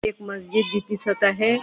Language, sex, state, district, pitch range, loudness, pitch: Marathi, female, Maharashtra, Nagpur, 200-215 Hz, -23 LUFS, 205 Hz